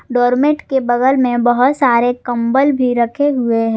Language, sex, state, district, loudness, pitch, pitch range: Hindi, female, Jharkhand, Garhwa, -14 LUFS, 245 Hz, 240-265 Hz